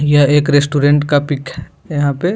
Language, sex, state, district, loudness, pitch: Hindi, male, Bihar, Begusarai, -14 LUFS, 145 Hz